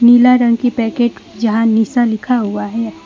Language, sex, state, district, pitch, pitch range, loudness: Hindi, female, West Bengal, Alipurduar, 230 Hz, 220-240 Hz, -14 LUFS